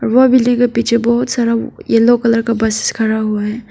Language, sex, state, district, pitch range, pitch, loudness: Hindi, female, Arunachal Pradesh, Papum Pare, 225-240 Hz, 230 Hz, -14 LUFS